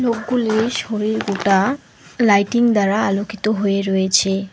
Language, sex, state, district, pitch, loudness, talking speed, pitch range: Bengali, female, West Bengal, Alipurduar, 210 Hz, -18 LUFS, 65 wpm, 195-230 Hz